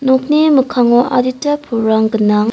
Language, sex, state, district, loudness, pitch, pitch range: Garo, female, Meghalaya, South Garo Hills, -13 LUFS, 250 Hz, 220-270 Hz